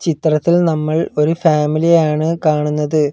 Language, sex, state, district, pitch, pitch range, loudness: Malayalam, male, Kerala, Kollam, 155 Hz, 150-165 Hz, -15 LUFS